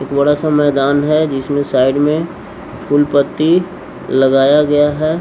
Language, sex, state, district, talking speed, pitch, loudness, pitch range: Hindi, male, Bihar, Patna, 140 wpm, 145 Hz, -13 LUFS, 140-155 Hz